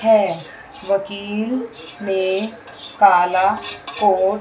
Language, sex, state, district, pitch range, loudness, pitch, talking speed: Hindi, female, Chandigarh, Chandigarh, 190-220 Hz, -19 LUFS, 200 Hz, 80 wpm